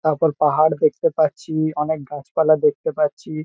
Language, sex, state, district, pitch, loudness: Bengali, male, West Bengal, Kolkata, 155 Hz, -19 LUFS